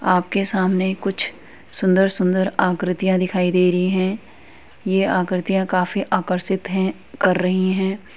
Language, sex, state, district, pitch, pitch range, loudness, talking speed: Hindi, female, Uttar Pradesh, Etah, 185 Hz, 185-190 Hz, -20 LUFS, 130 wpm